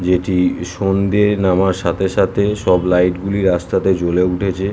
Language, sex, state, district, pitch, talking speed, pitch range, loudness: Bengali, male, West Bengal, North 24 Parganas, 95 Hz, 140 wpm, 90-95 Hz, -16 LUFS